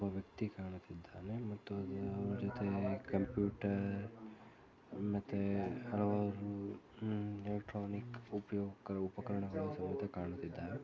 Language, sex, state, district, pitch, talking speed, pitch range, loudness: Kannada, male, Karnataka, Shimoga, 100 Hz, 65 wpm, 100-105 Hz, -41 LUFS